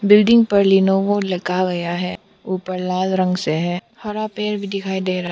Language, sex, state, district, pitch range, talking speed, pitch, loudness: Hindi, female, Arunachal Pradesh, Papum Pare, 180-205 Hz, 190 wpm, 190 Hz, -19 LUFS